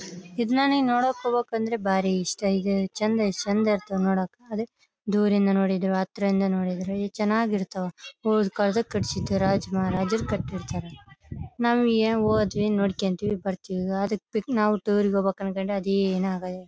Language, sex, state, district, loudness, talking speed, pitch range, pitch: Kannada, female, Karnataka, Bellary, -25 LUFS, 145 wpm, 190-215 Hz, 200 Hz